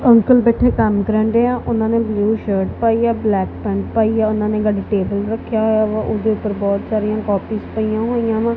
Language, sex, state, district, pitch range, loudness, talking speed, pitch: Punjabi, female, Punjab, Kapurthala, 210-230 Hz, -17 LUFS, 205 wpm, 220 Hz